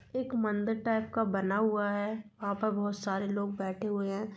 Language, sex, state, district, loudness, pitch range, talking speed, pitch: Hindi, female, Jharkhand, Sahebganj, -32 LUFS, 200-220 Hz, 205 wpm, 205 Hz